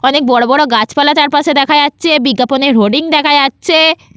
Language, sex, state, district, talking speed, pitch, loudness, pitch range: Bengali, female, West Bengal, Paschim Medinipur, 160 wpm, 290 Hz, -10 LUFS, 265-300 Hz